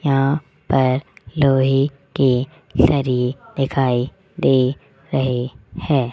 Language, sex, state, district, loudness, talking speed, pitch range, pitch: Hindi, male, Rajasthan, Jaipur, -19 LUFS, 90 wpm, 125-140 Hz, 135 Hz